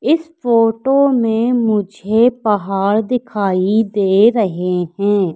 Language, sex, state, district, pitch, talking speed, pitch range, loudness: Hindi, female, Madhya Pradesh, Katni, 215 Hz, 100 wpm, 195-240 Hz, -15 LUFS